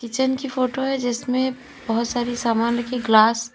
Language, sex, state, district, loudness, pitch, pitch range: Hindi, female, Uttar Pradesh, Lalitpur, -21 LUFS, 245 Hz, 235-260 Hz